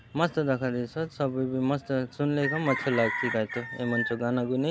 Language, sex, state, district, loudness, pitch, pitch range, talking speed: Halbi, male, Chhattisgarh, Bastar, -28 LUFS, 130 Hz, 120-145 Hz, 205 wpm